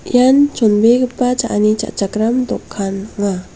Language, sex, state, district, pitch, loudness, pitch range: Garo, female, Meghalaya, South Garo Hills, 225 Hz, -15 LUFS, 205-250 Hz